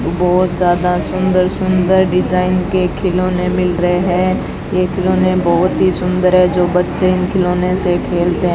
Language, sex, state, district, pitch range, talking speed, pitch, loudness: Hindi, female, Rajasthan, Bikaner, 180-185 Hz, 155 wpm, 180 Hz, -14 LUFS